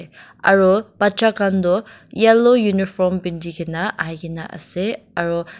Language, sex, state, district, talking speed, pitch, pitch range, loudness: Nagamese, female, Nagaland, Dimapur, 105 wpm, 190 Hz, 170-210 Hz, -18 LUFS